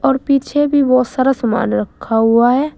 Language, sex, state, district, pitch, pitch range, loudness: Hindi, female, Uttar Pradesh, Saharanpur, 260 Hz, 230-275 Hz, -14 LUFS